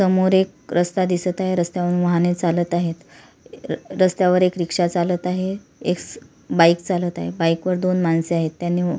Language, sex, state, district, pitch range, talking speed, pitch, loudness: Marathi, female, Maharashtra, Solapur, 170-185 Hz, 160 wpm, 175 Hz, -20 LUFS